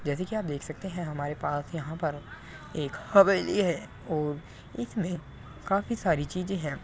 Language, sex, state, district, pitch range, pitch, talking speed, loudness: Hindi, male, Uttar Pradesh, Muzaffarnagar, 145-190 Hz, 160 Hz, 165 wpm, -29 LUFS